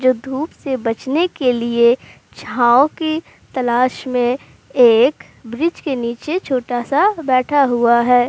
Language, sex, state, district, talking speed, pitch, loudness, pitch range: Hindi, female, Uttar Pradesh, Jalaun, 135 wpm, 255 Hz, -17 LUFS, 245-300 Hz